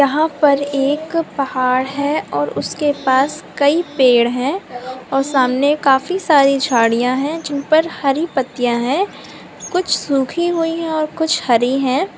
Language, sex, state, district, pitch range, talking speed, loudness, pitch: Hindi, female, Andhra Pradesh, Chittoor, 260-310 Hz, 135 wpm, -16 LUFS, 280 Hz